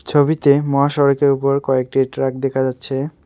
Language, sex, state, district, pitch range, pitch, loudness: Bengali, male, West Bengal, Alipurduar, 135-140 Hz, 140 Hz, -17 LUFS